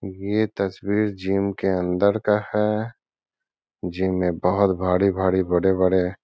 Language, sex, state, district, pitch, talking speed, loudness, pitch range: Hindi, male, Bihar, Gaya, 95 Hz, 125 wpm, -22 LUFS, 95-100 Hz